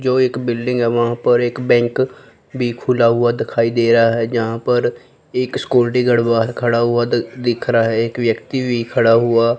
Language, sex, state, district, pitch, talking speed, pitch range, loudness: Hindi, female, Chandigarh, Chandigarh, 120 Hz, 195 wpm, 115-125 Hz, -16 LUFS